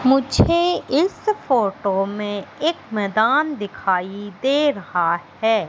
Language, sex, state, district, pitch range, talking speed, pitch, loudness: Hindi, female, Madhya Pradesh, Katni, 195-290 Hz, 105 wpm, 220 Hz, -20 LUFS